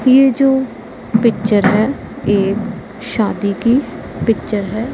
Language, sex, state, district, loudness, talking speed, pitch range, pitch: Hindi, female, Punjab, Pathankot, -15 LUFS, 110 wpm, 205-255 Hz, 220 Hz